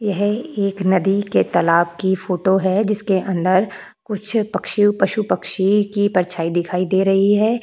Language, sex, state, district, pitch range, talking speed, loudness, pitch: Hindi, female, Goa, North and South Goa, 185-205 Hz, 155 wpm, -18 LUFS, 195 Hz